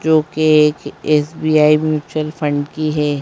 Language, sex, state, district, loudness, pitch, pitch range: Hindi, female, Madhya Pradesh, Bhopal, -16 LUFS, 155 Hz, 150-155 Hz